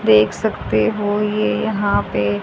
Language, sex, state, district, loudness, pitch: Hindi, male, Haryana, Jhajjar, -18 LUFS, 110 Hz